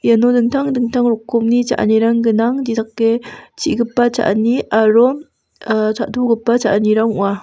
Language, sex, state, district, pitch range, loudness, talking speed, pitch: Garo, female, Meghalaya, West Garo Hills, 220-240 Hz, -15 LUFS, 115 wpm, 235 Hz